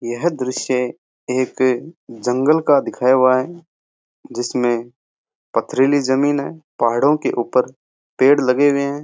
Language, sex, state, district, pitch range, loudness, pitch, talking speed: Rajasthani, male, Rajasthan, Churu, 125-145 Hz, -18 LUFS, 130 Hz, 125 wpm